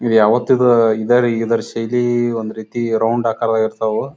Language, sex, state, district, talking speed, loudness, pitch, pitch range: Kannada, male, Karnataka, Bijapur, 145 wpm, -16 LUFS, 115 Hz, 110-120 Hz